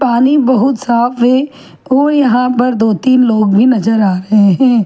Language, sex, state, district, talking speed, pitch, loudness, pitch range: Hindi, female, Chhattisgarh, Jashpur, 185 wpm, 250 Hz, -11 LUFS, 225-260 Hz